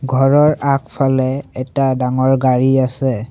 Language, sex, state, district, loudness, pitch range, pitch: Assamese, male, Assam, Sonitpur, -15 LUFS, 130-135 Hz, 135 Hz